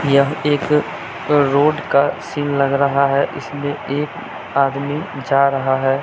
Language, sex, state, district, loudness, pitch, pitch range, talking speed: Hindi, male, Jharkhand, Deoghar, -18 LUFS, 140 Hz, 140-145 Hz, 140 wpm